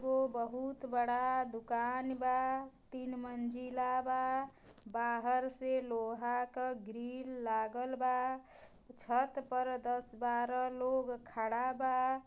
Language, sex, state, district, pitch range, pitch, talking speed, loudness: Bhojpuri, female, Uttar Pradesh, Gorakhpur, 240-260 Hz, 255 Hz, 105 wpm, -37 LUFS